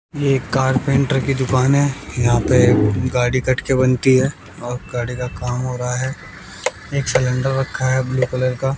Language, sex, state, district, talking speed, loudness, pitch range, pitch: Hindi, male, Bihar, West Champaran, 185 wpm, -18 LUFS, 125-135 Hz, 130 Hz